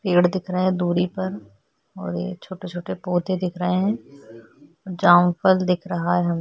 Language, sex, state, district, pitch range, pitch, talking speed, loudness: Hindi, female, Chhattisgarh, Korba, 170-185 Hz, 180 Hz, 170 wpm, -22 LUFS